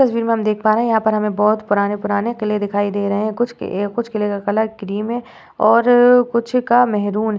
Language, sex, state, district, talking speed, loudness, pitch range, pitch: Hindi, female, Uttar Pradesh, Varanasi, 230 wpm, -17 LUFS, 205-235 Hz, 215 Hz